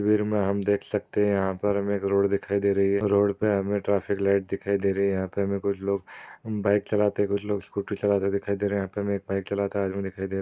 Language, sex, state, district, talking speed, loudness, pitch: Hindi, male, Maharashtra, Sindhudurg, 265 wpm, -26 LUFS, 100 Hz